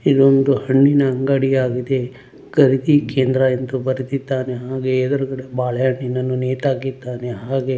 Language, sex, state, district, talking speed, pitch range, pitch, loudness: Kannada, male, Karnataka, Dakshina Kannada, 110 wpm, 130-135 Hz, 130 Hz, -18 LUFS